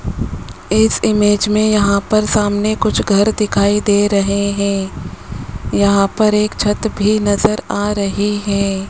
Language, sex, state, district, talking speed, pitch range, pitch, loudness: Hindi, male, Rajasthan, Jaipur, 140 wpm, 195-210 Hz, 205 Hz, -15 LUFS